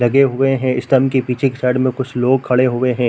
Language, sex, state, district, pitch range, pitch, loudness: Hindi, male, Chhattisgarh, Balrampur, 125-135 Hz, 130 Hz, -16 LUFS